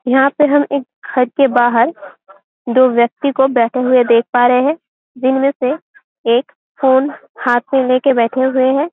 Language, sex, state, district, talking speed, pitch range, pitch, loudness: Hindi, female, Chhattisgarh, Bastar, 175 wpm, 245-275 Hz, 260 Hz, -14 LUFS